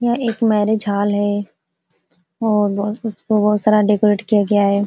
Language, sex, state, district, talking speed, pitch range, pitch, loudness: Hindi, female, Uttar Pradesh, Ghazipur, 170 wpm, 200-215 Hz, 210 Hz, -17 LUFS